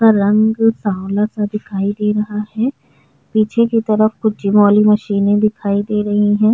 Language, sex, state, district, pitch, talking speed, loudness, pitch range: Hindi, female, Chhattisgarh, Jashpur, 210 Hz, 175 wpm, -15 LUFS, 205-215 Hz